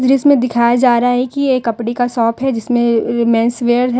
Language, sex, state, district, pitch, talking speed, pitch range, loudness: Hindi, female, Jharkhand, Deoghar, 240 Hz, 225 wpm, 235-250 Hz, -14 LUFS